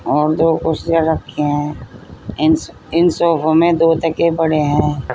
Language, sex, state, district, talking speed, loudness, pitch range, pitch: Hindi, female, Uttar Pradesh, Saharanpur, 150 wpm, -16 LUFS, 145-165 Hz, 155 Hz